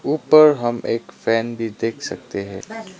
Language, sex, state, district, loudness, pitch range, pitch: Hindi, male, Sikkim, Gangtok, -19 LUFS, 115-155 Hz, 120 Hz